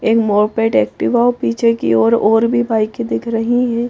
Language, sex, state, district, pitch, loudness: Hindi, female, Madhya Pradesh, Bhopal, 225 Hz, -15 LUFS